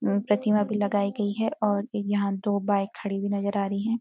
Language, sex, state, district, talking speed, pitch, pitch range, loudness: Hindi, female, Uttarakhand, Uttarkashi, 225 wpm, 205 Hz, 200-210 Hz, -26 LUFS